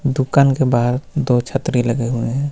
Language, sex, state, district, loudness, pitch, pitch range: Hindi, male, Jharkhand, Ranchi, -17 LUFS, 130 Hz, 120-140 Hz